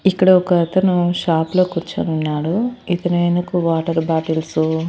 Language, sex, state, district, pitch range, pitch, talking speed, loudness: Telugu, female, Andhra Pradesh, Annamaya, 160-185 Hz, 175 Hz, 135 wpm, -18 LUFS